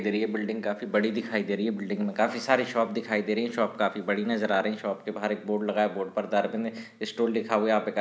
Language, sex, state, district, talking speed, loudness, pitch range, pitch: Hindi, male, Bihar, Bhagalpur, 315 wpm, -28 LUFS, 105-115 Hz, 105 Hz